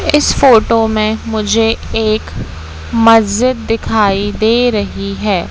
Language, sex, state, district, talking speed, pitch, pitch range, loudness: Hindi, female, Madhya Pradesh, Katni, 110 wpm, 220 Hz, 205-225 Hz, -12 LUFS